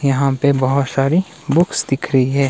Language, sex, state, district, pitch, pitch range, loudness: Hindi, male, Himachal Pradesh, Shimla, 140 Hz, 135-155 Hz, -17 LUFS